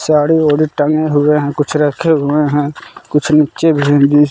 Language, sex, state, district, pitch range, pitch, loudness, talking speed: Hindi, male, Jharkhand, Palamu, 145-155 Hz, 150 Hz, -13 LUFS, 155 wpm